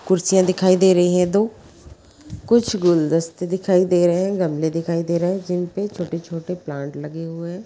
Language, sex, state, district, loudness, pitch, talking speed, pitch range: Magahi, female, Bihar, Gaya, -20 LUFS, 180 Hz, 190 wpm, 165-185 Hz